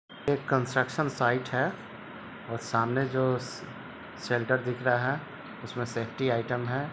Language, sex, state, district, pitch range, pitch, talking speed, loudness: Hindi, male, Jharkhand, Sahebganj, 120-135 Hz, 125 Hz, 130 wpm, -29 LUFS